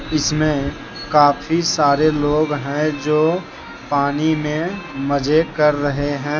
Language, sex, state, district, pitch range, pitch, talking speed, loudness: Hindi, male, Jharkhand, Deoghar, 145-155 Hz, 150 Hz, 115 wpm, -18 LUFS